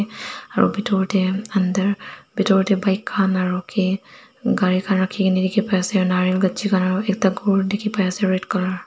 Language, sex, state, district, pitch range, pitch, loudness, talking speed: Nagamese, female, Nagaland, Dimapur, 185-200 Hz, 190 Hz, -20 LUFS, 195 wpm